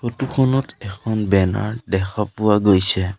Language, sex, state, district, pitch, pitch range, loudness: Assamese, male, Assam, Sonitpur, 105 Hz, 95-115 Hz, -19 LUFS